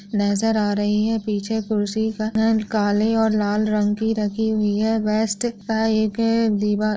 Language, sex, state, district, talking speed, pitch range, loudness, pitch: Hindi, female, Maharashtra, Sindhudurg, 155 wpm, 210-220 Hz, -21 LUFS, 215 Hz